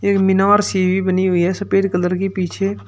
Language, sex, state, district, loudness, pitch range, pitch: Hindi, male, Uttar Pradesh, Shamli, -17 LUFS, 180-195 Hz, 190 Hz